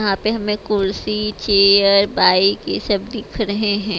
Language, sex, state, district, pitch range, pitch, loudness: Hindi, female, Haryana, Rohtak, 200-210 Hz, 205 Hz, -16 LUFS